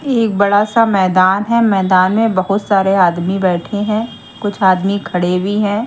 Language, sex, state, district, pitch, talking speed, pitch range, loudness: Hindi, female, Haryana, Jhajjar, 200 Hz, 175 wpm, 185-215 Hz, -14 LUFS